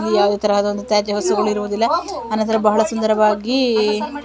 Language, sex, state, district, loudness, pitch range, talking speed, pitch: Kannada, female, Karnataka, Belgaum, -18 LUFS, 205-220 Hz, 140 wpm, 215 Hz